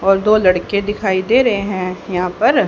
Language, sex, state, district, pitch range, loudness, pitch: Hindi, female, Haryana, Jhajjar, 185-210 Hz, -16 LUFS, 195 Hz